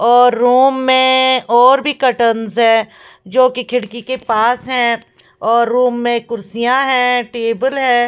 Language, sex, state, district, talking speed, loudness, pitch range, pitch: Hindi, female, Maharashtra, Mumbai Suburban, 140 wpm, -13 LUFS, 235-255 Hz, 245 Hz